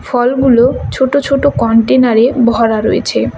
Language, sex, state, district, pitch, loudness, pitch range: Bengali, female, West Bengal, Cooch Behar, 250 Hz, -11 LUFS, 230-265 Hz